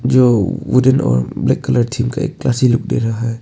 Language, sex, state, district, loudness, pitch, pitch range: Hindi, male, Arunachal Pradesh, Papum Pare, -15 LUFS, 120 Hz, 115-130 Hz